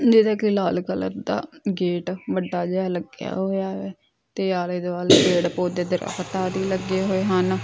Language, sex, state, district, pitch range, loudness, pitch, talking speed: Punjabi, female, Punjab, Fazilka, 180-195 Hz, -23 LUFS, 185 Hz, 150 wpm